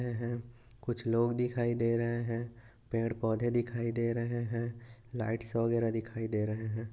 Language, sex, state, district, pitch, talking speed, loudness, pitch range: Hindi, male, Maharashtra, Dhule, 115 Hz, 175 wpm, -34 LUFS, 115-120 Hz